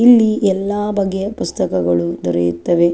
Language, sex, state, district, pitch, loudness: Kannada, female, Karnataka, Chamarajanagar, 190 Hz, -17 LUFS